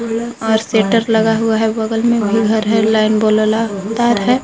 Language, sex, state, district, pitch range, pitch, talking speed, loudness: Hindi, female, Jharkhand, Garhwa, 220-225 Hz, 220 Hz, 190 wpm, -14 LUFS